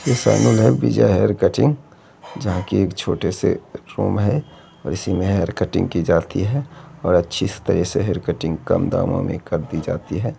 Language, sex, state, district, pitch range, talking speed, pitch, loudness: Hindi, male, Bihar, Begusarai, 90-140 Hz, 185 wpm, 105 Hz, -20 LUFS